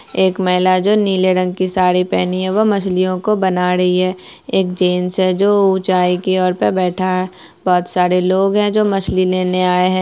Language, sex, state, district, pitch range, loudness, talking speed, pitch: Hindi, female, Bihar, Araria, 180-190 Hz, -15 LUFS, 210 wpm, 185 Hz